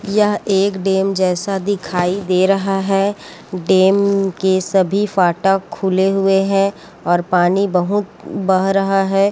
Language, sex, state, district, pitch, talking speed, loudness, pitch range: Chhattisgarhi, female, Chhattisgarh, Korba, 195 Hz, 135 wpm, -16 LUFS, 185-195 Hz